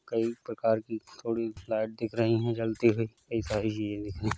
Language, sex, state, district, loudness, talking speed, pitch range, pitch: Hindi, male, Uttar Pradesh, Varanasi, -31 LUFS, 190 wpm, 110-115 Hz, 110 Hz